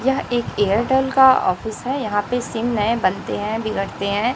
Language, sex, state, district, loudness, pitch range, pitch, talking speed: Hindi, female, Chhattisgarh, Raipur, -19 LUFS, 205-260 Hz, 230 Hz, 190 wpm